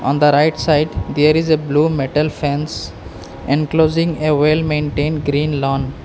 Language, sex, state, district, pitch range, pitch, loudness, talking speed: English, male, Assam, Kamrup Metropolitan, 145-155 Hz, 150 Hz, -16 LUFS, 160 wpm